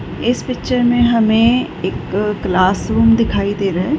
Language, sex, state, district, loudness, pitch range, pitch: Hindi, female, Uttar Pradesh, Budaun, -15 LUFS, 200-240 Hz, 225 Hz